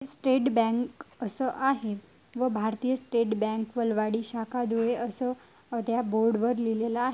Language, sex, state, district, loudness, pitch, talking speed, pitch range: Marathi, female, Maharashtra, Dhule, -29 LUFS, 235 Hz, 145 wpm, 225-250 Hz